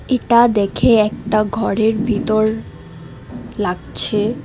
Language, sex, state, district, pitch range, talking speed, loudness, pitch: Bengali, female, Assam, Hailakandi, 210-230 Hz, 80 wpm, -16 LUFS, 215 Hz